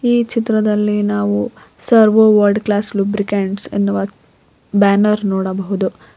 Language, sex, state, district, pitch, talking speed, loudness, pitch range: Kannada, female, Karnataka, Koppal, 205 Hz, 95 wpm, -15 LUFS, 195-215 Hz